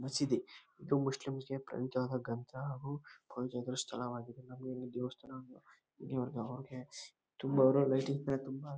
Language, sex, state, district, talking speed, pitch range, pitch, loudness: Kannada, male, Karnataka, Chamarajanagar, 90 wpm, 125-135 Hz, 130 Hz, -38 LUFS